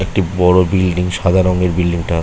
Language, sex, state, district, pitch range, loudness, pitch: Bengali, male, West Bengal, Malda, 90-95 Hz, -14 LUFS, 90 Hz